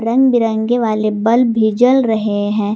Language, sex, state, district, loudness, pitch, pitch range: Hindi, female, Jharkhand, Garhwa, -14 LUFS, 225 Hz, 215-240 Hz